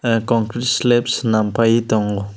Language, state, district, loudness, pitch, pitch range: Kokborok, Tripura, West Tripura, -17 LUFS, 115 Hz, 110-120 Hz